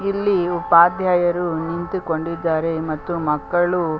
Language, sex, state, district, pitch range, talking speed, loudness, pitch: Kannada, female, Karnataka, Chamarajanagar, 165-180 Hz, 90 wpm, -19 LUFS, 175 Hz